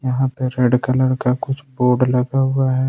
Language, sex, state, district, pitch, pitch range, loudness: Hindi, male, Jharkhand, Ranchi, 130 Hz, 125-135 Hz, -18 LUFS